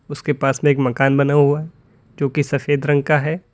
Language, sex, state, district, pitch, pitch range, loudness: Hindi, male, Uttar Pradesh, Lalitpur, 145 Hz, 135-145 Hz, -18 LUFS